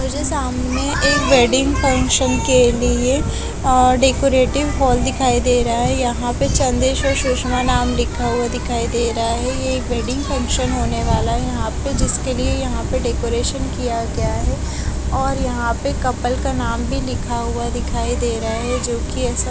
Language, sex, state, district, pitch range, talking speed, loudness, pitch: Hindi, female, Maharashtra, Gondia, 240-260 Hz, 180 wpm, -18 LUFS, 250 Hz